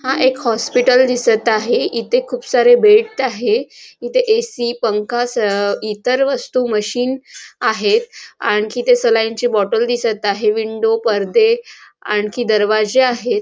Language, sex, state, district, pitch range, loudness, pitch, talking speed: Marathi, female, Maharashtra, Nagpur, 220-260 Hz, -16 LUFS, 245 Hz, 135 wpm